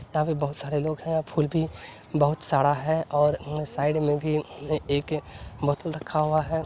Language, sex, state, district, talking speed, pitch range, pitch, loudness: Hindi, male, Bihar, Lakhisarai, 200 wpm, 145-155 Hz, 150 Hz, -26 LUFS